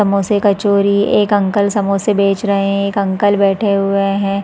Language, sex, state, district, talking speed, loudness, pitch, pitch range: Hindi, female, Chhattisgarh, Raigarh, 190 wpm, -14 LUFS, 200 Hz, 195-205 Hz